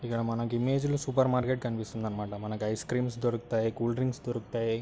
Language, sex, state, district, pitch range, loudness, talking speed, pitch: Telugu, male, Telangana, Karimnagar, 110-125 Hz, -31 LUFS, 200 wpm, 120 Hz